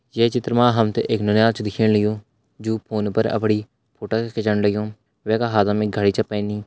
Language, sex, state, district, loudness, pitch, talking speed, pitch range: Garhwali, male, Uttarakhand, Uttarkashi, -20 LUFS, 110 Hz, 200 wpm, 105-115 Hz